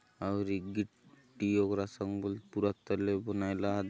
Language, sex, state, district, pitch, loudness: Halbi, male, Chhattisgarh, Bastar, 100 Hz, -35 LUFS